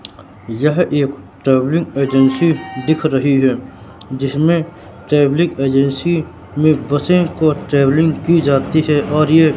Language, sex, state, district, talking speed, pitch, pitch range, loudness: Hindi, male, Madhya Pradesh, Katni, 120 wpm, 145 Hz, 135-155 Hz, -15 LUFS